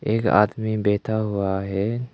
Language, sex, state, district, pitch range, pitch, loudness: Hindi, male, Arunachal Pradesh, Lower Dibang Valley, 100-110 Hz, 105 Hz, -22 LUFS